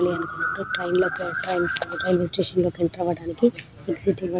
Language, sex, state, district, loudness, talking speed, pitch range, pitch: Telugu, female, Telangana, Nalgonda, -24 LUFS, 120 wpm, 175-185 Hz, 180 Hz